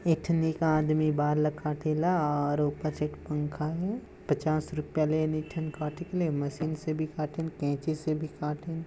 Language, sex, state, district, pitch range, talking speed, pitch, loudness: Chhattisgarhi, male, Chhattisgarh, Jashpur, 150-160 Hz, 190 wpm, 155 Hz, -30 LUFS